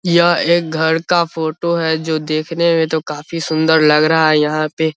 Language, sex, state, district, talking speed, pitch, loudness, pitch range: Hindi, male, Bihar, Vaishali, 220 wpm, 160 Hz, -15 LUFS, 155-170 Hz